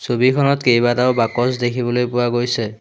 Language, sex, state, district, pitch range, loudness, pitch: Assamese, male, Assam, Hailakandi, 120-125 Hz, -17 LUFS, 120 Hz